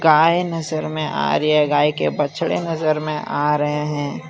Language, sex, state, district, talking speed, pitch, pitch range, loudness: Hindi, male, Gujarat, Valsad, 195 wpm, 155 Hz, 150-160 Hz, -19 LUFS